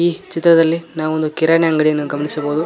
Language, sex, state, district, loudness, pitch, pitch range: Kannada, male, Karnataka, Koppal, -16 LUFS, 160 Hz, 155-165 Hz